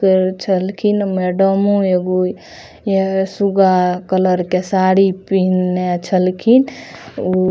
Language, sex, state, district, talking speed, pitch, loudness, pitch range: Maithili, female, Bihar, Madhepura, 105 wpm, 185 Hz, -15 LUFS, 185-195 Hz